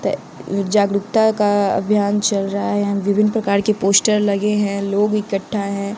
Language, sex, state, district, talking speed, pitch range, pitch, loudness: Hindi, female, Bihar, West Champaran, 160 wpm, 200-210 Hz, 205 Hz, -18 LUFS